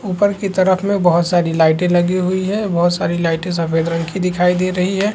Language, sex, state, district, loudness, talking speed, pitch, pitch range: Hindi, male, Bihar, Supaul, -16 LUFS, 230 wpm, 180 Hz, 170-190 Hz